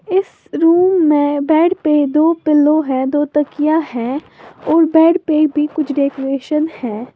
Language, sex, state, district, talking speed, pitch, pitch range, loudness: Hindi, female, Uttar Pradesh, Lalitpur, 150 wpm, 300 Hz, 285-325 Hz, -15 LUFS